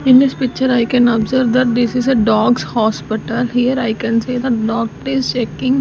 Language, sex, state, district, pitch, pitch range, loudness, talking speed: English, female, Maharashtra, Gondia, 240 Hz, 225-255 Hz, -15 LUFS, 215 wpm